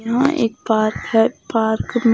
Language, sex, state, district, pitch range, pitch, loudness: Hindi, female, Odisha, Khordha, 225-240 Hz, 230 Hz, -18 LUFS